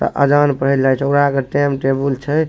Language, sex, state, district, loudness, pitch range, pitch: Maithili, male, Bihar, Supaul, -16 LUFS, 135-145 Hz, 140 Hz